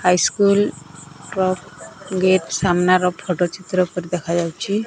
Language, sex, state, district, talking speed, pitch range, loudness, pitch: Odia, male, Odisha, Nuapada, 125 wpm, 175-185 Hz, -19 LUFS, 180 Hz